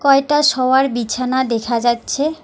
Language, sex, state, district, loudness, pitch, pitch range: Bengali, female, West Bengal, Alipurduar, -16 LUFS, 260 Hz, 240-280 Hz